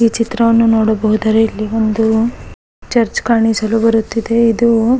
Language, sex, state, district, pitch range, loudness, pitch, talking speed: Kannada, female, Karnataka, Raichur, 220-230 Hz, -14 LUFS, 225 Hz, 120 wpm